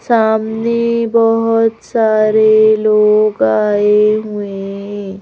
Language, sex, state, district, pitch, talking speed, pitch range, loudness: Hindi, female, Madhya Pradesh, Bhopal, 215 Hz, 80 wpm, 210-225 Hz, -13 LUFS